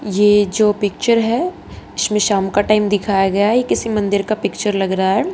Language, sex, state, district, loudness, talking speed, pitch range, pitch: Hindi, female, Haryana, Charkhi Dadri, -16 LUFS, 215 wpm, 200-215 Hz, 205 Hz